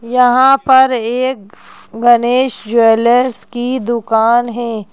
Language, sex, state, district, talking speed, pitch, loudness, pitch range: Hindi, female, Madhya Pradesh, Bhopal, 95 wpm, 240 Hz, -12 LUFS, 230-255 Hz